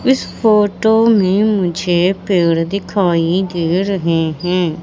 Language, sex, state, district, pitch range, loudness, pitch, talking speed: Hindi, female, Madhya Pradesh, Katni, 170-205 Hz, -15 LUFS, 185 Hz, 110 wpm